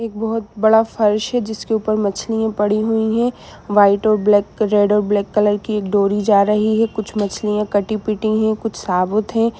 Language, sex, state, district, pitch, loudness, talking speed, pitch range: Hindi, female, Jharkhand, Sahebganj, 215 Hz, -17 LUFS, 200 wpm, 205-220 Hz